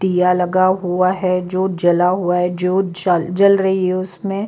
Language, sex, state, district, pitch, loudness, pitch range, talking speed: Hindi, female, Bihar, Katihar, 185 Hz, -16 LUFS, 180-190 Hz, 190 wpm